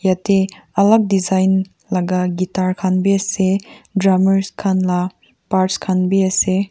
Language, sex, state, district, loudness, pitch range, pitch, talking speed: Nagamese, female, Nagaland, Kohima, -17 LUFS, 185-195 Hz, 190 Hz, 135 wpm